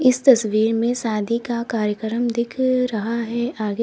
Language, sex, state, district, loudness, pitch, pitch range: Hindi, female, Uttar Pradesh, Lalitpur, -21 LUFS, 235 Hz, 220-240 Hz